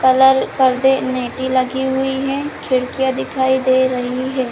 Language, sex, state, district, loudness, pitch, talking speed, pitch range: Hindi, female, Chhattisgarh, Bilaspur, -17 LUFS, 260 Hz, 160 wpm, 255-265 Hz